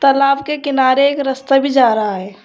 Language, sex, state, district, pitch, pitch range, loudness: Hindi, female, Uttar Pradesh, Saharanpur, 270 Hz, 255-275 Hz, -14 LUFS